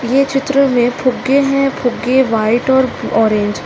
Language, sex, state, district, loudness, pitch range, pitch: Hindi, female, Uttarakhand, Uttarkashi, -14 LUFS, 240-275 Hz, 255 Hz